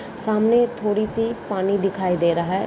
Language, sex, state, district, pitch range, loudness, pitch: Hindi, female, Bihar, Saran, 190-225 Hz, -21 LUFS, 210 Hz